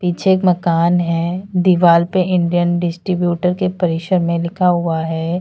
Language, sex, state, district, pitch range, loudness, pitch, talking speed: Hindi, female, Uttar Pradesh, Lalitpur, 170-180 Hz, -16 LUFS, 175 Hz, 155 wpm